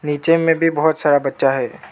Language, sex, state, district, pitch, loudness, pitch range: Hindi, male, Arunachal Pradesh, Lower Dibang Valley, 150 Hz, -17 LUFS, 145-165 Hz